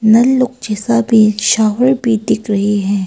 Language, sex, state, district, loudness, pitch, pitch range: Hindi, female, Arunachal Pradesh, Papum Pare, -13 LUFS, 220 Hz, 210-240 Hz